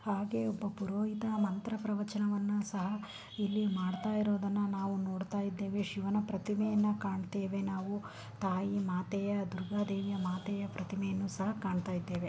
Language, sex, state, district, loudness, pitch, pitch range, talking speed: Kannada, female, Karnataka, Bijapur, -36 LUFS, 200 Hz, 195-205 Hz, 95 wpm